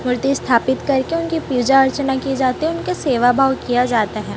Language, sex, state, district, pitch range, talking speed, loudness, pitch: Hindi, female, Chhattisgarh, Raipur, 250-275 Hz, 205 wpm, -17 LUFS, 265 Hz